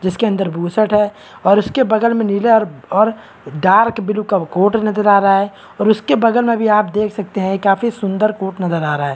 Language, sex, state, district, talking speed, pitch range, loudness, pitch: Hindi, male, Bihar, Kishanganj, 225 wpm, 195-220 Hz, -15 LUFS, 210 Hz